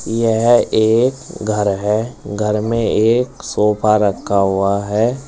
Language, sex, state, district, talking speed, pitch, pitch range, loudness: Hindi, male, Uttar Pradesh, Saharanpur, 125 wpm, 110 Hz, 105-115 Hz, -16 LUFS